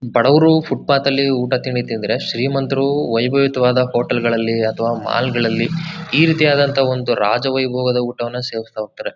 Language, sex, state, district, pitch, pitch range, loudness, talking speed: Kannada, male, Karnataka, Chamarajanagar, 125 Hz, 120-140 Hz, -17 LUFS, 140 wpm